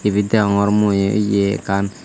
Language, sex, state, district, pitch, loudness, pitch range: Chakma, male, Tripura, Dhalai, 100 Hz, -17 LUFS, 100-105 Hz